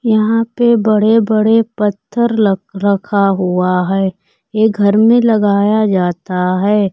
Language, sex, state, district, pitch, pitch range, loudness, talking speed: Hindi, female, Bihar, Kaimur, 210 Hz, 195-220 Hz, -13 LUFS, 120 wpm